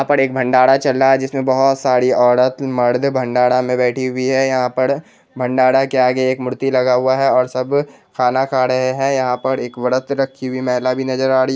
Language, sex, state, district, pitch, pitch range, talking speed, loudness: Hindi, male, Bihar, Jahanabad, 130 Hz, 125-135 Hz, 230 wpm, -16 LUFS